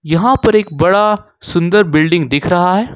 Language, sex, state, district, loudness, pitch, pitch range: Hindi, male, Jharkhand, Ranchi, -12 LUFS, 180 Hz, 165-210 Hz